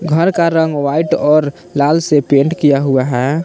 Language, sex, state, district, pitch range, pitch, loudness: Hindi, male, Jharkhand, Palamu, 140-165 Hz, 150 Hz, -13 LUFS